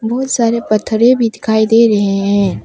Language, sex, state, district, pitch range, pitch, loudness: Hindi, female, Arunachal Pradesh, Papum Pare, 215-235 Hz, 220 Hz, -13 LUFS